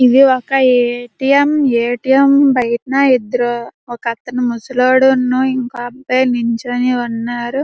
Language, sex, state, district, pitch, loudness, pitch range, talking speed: Telugu, female, Andhra Pradesh, Srikakulam, 250 Hz, -14 LUFS, 240-265 Hz, 95 wpm